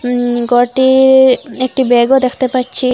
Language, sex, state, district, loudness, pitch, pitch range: Bengali, female, Assam, Hailakandi, -11 LUFS, 255 Hz, 245-260 Hz